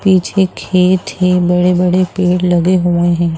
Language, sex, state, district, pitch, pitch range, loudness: Hindi, female, Bihar, Jamui, 180 Hz, 175-185 Hz, -13 LUFS